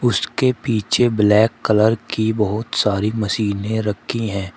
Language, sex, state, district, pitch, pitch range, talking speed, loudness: Hindi, male, Uttar Pradesh, Shamli, 110 Hz, 105-115 Hz, 130 wpm, -18 LUFS